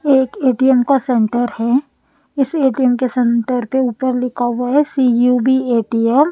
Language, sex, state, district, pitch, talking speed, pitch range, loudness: Hindi, female, Punjab, Pathankot, 255 Hz, 170 wpm, 245-265 Hz, -15 LUFS